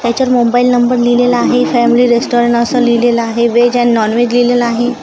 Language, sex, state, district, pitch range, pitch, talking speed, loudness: Marathi, female, Maharashtra, Gondia, 235-245 Hz, 240 Hz, 180 wpm, -11 LUFS